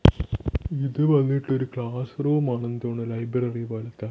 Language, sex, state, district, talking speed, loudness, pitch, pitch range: Malayalam, male, Kerala, Thiruvananthapuram, 130 wpm, -26 LUFS, 125 Hz, 120-135 Hz